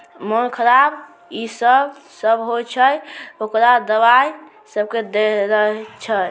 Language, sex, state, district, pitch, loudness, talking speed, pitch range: Maithili, male, Bihar, Samastipur, 235 Hz, -17 LUFS, 125 wpm, 215-260 Hz